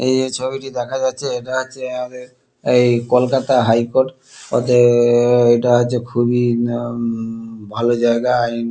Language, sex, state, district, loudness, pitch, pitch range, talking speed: Bengali, male, West Bengal, Kolkata, -17 LUFS, 120 Hz, 120-130 Hz, 125 wpm